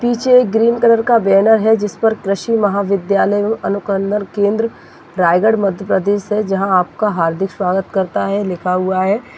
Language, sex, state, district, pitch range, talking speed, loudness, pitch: Hindi, female, Chhattisgarh, Raigarh, 195-220 Hz, 165 wpm, -15 LUFS, 200 Hz